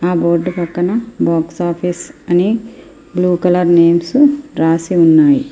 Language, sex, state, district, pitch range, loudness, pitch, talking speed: Telugu, female, Andhra Pradesh, Srikakulam, 170-220 Hz, -13 LUFS, 180 Hz, 110 wpm